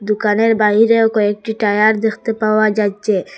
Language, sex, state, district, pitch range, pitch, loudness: Bengali, female, Assam, Hailakandi, 210-220 Hz, 215 Hz, -15 LUFS